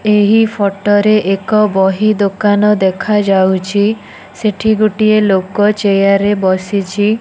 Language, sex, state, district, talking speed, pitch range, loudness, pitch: Odia, female, Odisha, Nuapada, 110 wpm, 195-215 Hz, -12 LUFS, 205 Hz